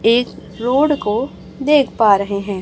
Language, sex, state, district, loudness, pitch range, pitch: Hindi, female, Chhattisgarh, Raipur, -16 LUFS, 200-270 Hz, 230 Hz